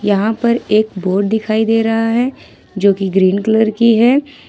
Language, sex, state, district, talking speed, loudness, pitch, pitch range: Hindi, female, Jharkhand, Ranchi, 175 wpm, -14 LUFS, 220 Hz, 200-230 Hz